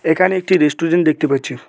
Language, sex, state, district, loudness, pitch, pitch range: Bengali, male, West Bengal, Cooch Behar, -15 LUFS, 160 Hz, 150-175 Hz